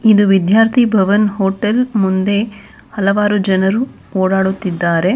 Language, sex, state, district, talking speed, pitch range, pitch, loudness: Kannada, female, Karnataka, Bangalore, 95 wpm, 190-215 Hz, 200 Hz, -14 LUFS